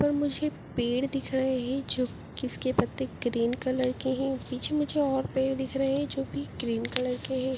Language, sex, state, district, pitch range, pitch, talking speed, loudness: Hindi, female, Chhattisgarh, Korba, 250-270 Hz, 260 Hz, 230 wpm, -30 LUFS